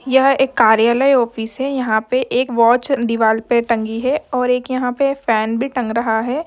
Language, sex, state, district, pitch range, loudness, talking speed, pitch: Hindi, female, Maharashtra, Dhule, 230-265 Hz, -16 LUFS, 205 wpm, 250 Hz